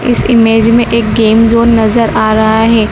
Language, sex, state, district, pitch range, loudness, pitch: Hindi, female, Madhya Pradesh, Dhar, 220-230 Hz, -8 LUFS, 225 Hz